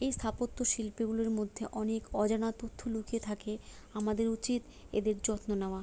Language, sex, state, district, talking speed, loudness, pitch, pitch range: Bengali, female, West Bengal, Jalpaiguri, 145 wpm, -35 LUFS, 220 Hz, 215-225 Hz